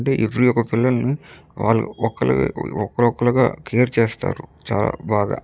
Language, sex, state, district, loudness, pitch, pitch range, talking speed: Telugu, male, Andhra Pradesh, Chittoor, -20 LUFS, 120 Hz, 115-125 Hz, 145 wpm